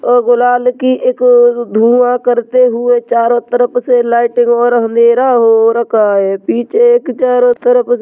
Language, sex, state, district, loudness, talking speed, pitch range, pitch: Hindi, male, Bihar, Jamui, -10 LUFS, 165 wpm, 235-245 Hz, 245 Hz